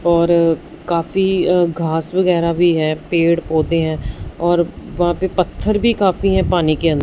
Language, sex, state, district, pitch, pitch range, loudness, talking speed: Hindi, female, Punjab, Fazilka, 170 Hz, 165-180 Hz, -17 LUFS, 170 wpm